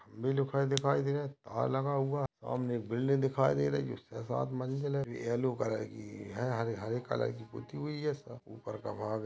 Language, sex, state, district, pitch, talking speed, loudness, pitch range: Hindi, male, Maharashtra, Aurangabad, 130 Hz, 220 wpm, -35 LUFS, 110-140 Hz